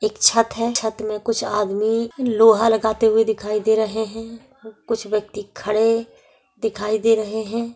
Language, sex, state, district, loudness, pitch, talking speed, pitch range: Hindi, female, Bihar, East Champaran, -20 LUFS, 220 Hz, 170 wpm, 215-230 Hz